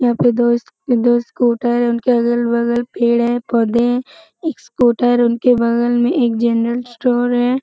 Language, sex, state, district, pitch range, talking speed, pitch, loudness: Hindi, female, Bihar, Jamui, 235-245 Hz, 175 wpm, 240 Hz, -16 LUFS